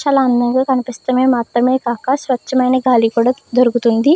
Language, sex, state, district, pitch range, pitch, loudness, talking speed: Telugu, female, Andhra Pradesh, Krishna, 240-260 Hz, 255 Hz, -15 LUFS, 130 wpm